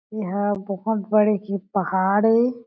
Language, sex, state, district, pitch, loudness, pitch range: Chhattisgarhi, female, Chhattisgarh, Jashpur, 205 Hz, -22 LUFS, 200-215 Hz